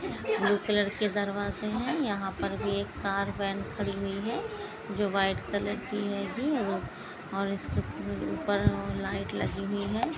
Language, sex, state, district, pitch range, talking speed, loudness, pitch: Hindi, female, Goa, North and South Goa, 195-210 Hz, 160 wpm, -31 LUFS, 200 Hz